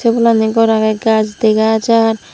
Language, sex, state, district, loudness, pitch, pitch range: Chakma, female, Tripura, Dhalai, -13 LUFS, 220 Hz, 220-225 Hz